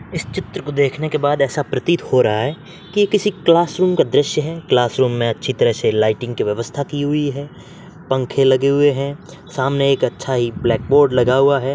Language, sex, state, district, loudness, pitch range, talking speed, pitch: Hindi, male, Uttar Pradesh, Varanasi, -17 LUFS, 130-160 Hz, 210 wpm, 140 Hz